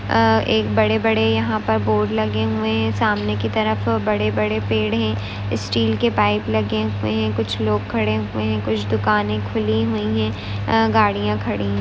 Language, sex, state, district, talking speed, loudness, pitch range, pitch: Hindi, female, Maharashtra, Pune, 190 wpm, -20 LUFS, 105-110 Hz, 110 Hz